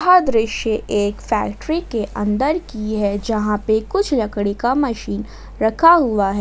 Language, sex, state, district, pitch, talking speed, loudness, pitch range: Hindi, female, Jharkhand, Ranchi, 220 Hz, 160 wpm, -18 LUFS, 205-270 Hz